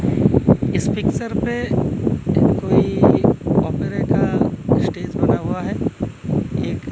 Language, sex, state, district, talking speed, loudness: Hindi, male, Odisha, Malkangiri, 85 wpm, -19 LUFS